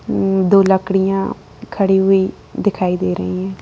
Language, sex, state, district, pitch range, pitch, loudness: Hindi, female, Bihar, Muzaffarpur, 185-195 Hz, 190 Hz, -16 LUFS